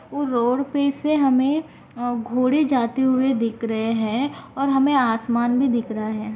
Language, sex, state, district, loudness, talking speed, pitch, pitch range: Hindi, female, Maharashtra, Aurangabad, -21 LUFS, 170 wpm, 255 Hz, 230-275 Hz